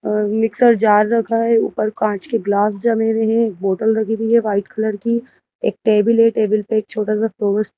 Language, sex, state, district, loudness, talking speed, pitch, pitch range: Hindi, female, Madhya Pradesh, Bhopal, -17 LUFS, 225 wpm, 220 Hz, 210-230 Hz